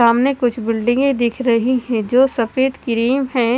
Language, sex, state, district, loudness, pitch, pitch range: Hindi, female, Chandigarh, Chandigarh, -17 LUFS, 245 Hz, 235-260 Hz